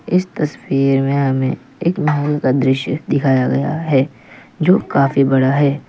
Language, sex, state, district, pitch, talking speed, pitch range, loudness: Hindi, male, Uttar Pradesh, Lalitpur, 140 Hz, 155 wpm, 135-150 Hz, -16 LUFS